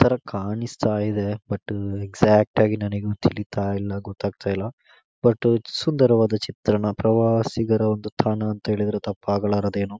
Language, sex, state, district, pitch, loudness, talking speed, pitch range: Kannada, male, Karnataka, Dakshina Kannada, 105 Hz, -23 LUFS, 100 wpm, 100-110 Hz